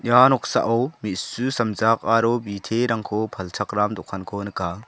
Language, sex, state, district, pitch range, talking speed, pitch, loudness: Garo, male, Meghalaya, South Garo Hills, 100-115 Hz, 110 wpm, 110 Hz, -22 LUFS